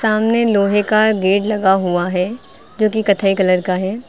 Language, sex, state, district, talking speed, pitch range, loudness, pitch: Hindi, female, Uttar Pradesh, Lucknow, 190 wpm, 190-215 Hz, -16 LUFS, 200 Hz